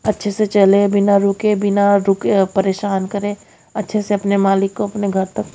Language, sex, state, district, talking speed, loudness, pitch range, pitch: Hindi, female, Haryana, Jhajjar, 185 wpm, -16 LUFS, 195-205 Hz, 200 Hz